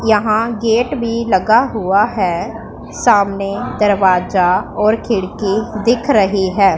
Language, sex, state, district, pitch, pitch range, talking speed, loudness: Hindi, female, Punjab, Pathankot, 210 Hz, 195-230 Hz, 115 wpm, -15 LUFS